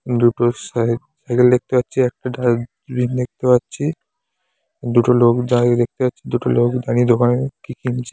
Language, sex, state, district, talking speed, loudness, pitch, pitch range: Bengali, male, West Bengal, Jhargram, 145 wpm, -18 LUFS, 125 Hz, 120-125 Hz